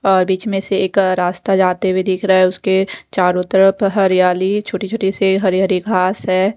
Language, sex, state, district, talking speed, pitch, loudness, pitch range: Hindi, female, Odisha, Khordha, 190 wpm, 190 Hz, -15 LUFS, 185-195 Hz